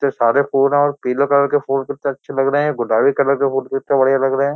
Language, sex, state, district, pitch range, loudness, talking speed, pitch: Hindi, male, Uttar Pradesh, Jyotiba Phule Nagar, 135-140 Hz, -17 LUFS, 300 wpm, 140 Hz